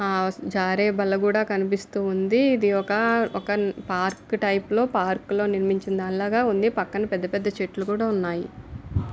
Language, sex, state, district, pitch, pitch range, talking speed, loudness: Telugu, female, Andhra Pradesh, Visakhapatnam, 200 Hz, 190-210 Hz, 145 wpm, -24 LUFS